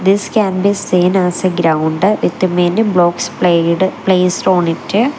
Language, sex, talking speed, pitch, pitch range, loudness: English, female, 160 wpm, 185 Hz, 175-195 Hz, -13 LUFS